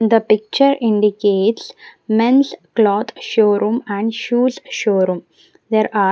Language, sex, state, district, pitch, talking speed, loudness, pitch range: English, female, Punjab, Pathankot, 220 Hz, 115 wpm, -16 LUFS, 205-230 Hz